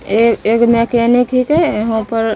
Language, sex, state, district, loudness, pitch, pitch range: Maithili, female, Bihar, Begusarai, -13 LUFS, 230 Hz, 225-245 Hz